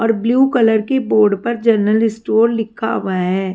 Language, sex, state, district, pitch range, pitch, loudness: Hindi, female, Haryana, Rohtak, 210-235 Hz, 225 Hz, -15 LUFS